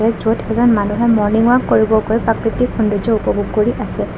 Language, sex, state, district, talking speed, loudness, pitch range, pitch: Assamese, female, Assam, Kamrup Metropolitan, 160 wpm, -15 LUFS, 215-235 Hz, 225 Hz